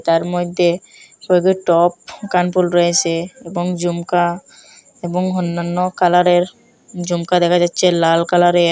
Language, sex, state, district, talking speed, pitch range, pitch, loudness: Bengali, female, Assam, Hailakandi, 110 wpm, 175-180 Hz, 175 Hz, -16 LUFS